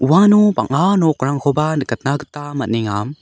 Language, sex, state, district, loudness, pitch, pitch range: Garo, male, Meghalaya, South Garo Hills, -16 LUFS, 145 Hz, 130-155 Hz